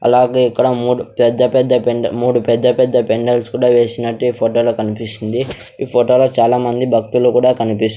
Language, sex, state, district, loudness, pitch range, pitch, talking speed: Telugu, male, Andhra Pradesh, Sri Satya Sai, -14 LUFS, 115-125 Hz, 120 Hz, 190 wpm